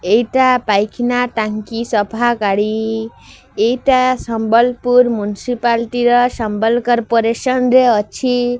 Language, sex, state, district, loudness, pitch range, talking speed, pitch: Odia, female, Odisha, Sambalpur, -15 LUFS, 220-245 Hz, 55 wpm, 235 Hz